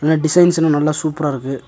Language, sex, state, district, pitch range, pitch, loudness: Tamil, male, Tamil Nadu, Nilgiris, 145-160 Hz, 155 Hz, -15 LUFS